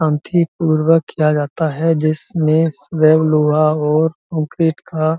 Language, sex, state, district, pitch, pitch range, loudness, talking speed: Hindi, male, Uttar Pradesh, Muzaffarnagar, 155 Hz, 155-160 Hz, -16 LUFS, 140 wpm